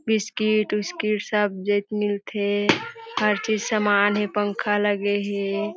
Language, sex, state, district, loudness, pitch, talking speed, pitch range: Chhattisgarhi, female, Chhattisgarh, Jashpur, -23 LUFS, 210 Hz, 135 wpm, 205-215 Hz